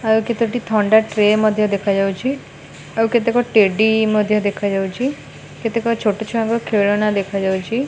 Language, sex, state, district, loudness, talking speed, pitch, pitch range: Odia, female, Odisha, Khordha, -17 LUFS, 130 wpm, 215 Hz, 200-230 Hz